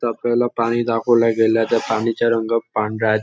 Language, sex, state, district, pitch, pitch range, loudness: Marathi, male, Maharashtra, Nagpur, 115 Hz, 110-120 Hz, -18 LUFS